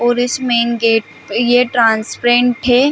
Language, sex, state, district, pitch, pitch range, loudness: Hindi, female, Chhattisgarh, Bilaspur, 240 Hz, 230-245 Hz, -14 LUFS